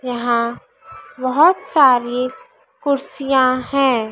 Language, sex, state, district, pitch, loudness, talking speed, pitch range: Hindi, female, Madhya Pradesh, Dhar, 255 Hz, -17 LUFS, 75 wpm, 245-280 Hz